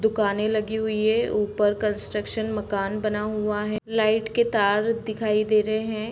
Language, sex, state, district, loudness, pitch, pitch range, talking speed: Hindi, female, Bihar, East Champaran, -24 LUFS, 215 Hz, 210-220 Hz, 165 wpm